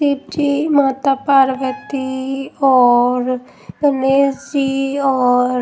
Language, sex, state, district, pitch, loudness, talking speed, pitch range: Hindi, female, Punjab, Pathankot, 270 Hz, -16 LUFS, 85 wpm, 260-280 Hz